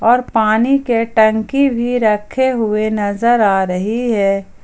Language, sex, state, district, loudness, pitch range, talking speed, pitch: Hindi, female, Jharkhand, Ranchi, -15 LUFS, 210-245 Hz, 140 wpm, 220 Hz